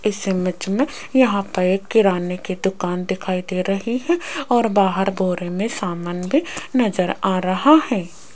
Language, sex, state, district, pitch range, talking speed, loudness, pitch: Hindi, female, Rajasthan, Jaipur, 185-230 Hz, 165 wpm, -20 LUFS, 195 Hz